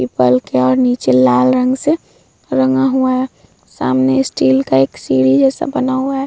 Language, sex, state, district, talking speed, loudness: Hindi, female, Bihar, Vaishali, 180 wpm, -14 LUFS